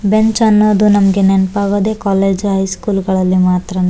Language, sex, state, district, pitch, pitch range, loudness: Kannada, male, Karnataka, Bellary, 195 Hz, 190-210 Hz, -13 LUFS